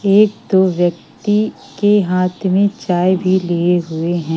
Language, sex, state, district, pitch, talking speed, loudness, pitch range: Hindi, female, Madhya Pradesh, Katni, 185 Hz, 150 wpm, -16 LUFS, 175-205 Hz